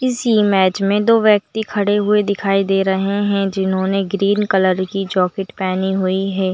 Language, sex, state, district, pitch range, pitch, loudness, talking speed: Hindi, female, Chhattisgarh, Bilaspur, 190-205 Hz, 195 Hz, -17 LUFS, 175 wpm